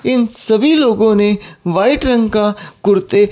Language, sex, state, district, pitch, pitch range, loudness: Hindi, male, Chandigarh, Chandigarh, 210 Hz, 205-240 Hz, -13 LUFS